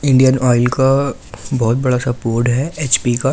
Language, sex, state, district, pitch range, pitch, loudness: Hindi, male, Delhi, New Delhi, 120-135 Hz, 125 Hz, -15 LUFS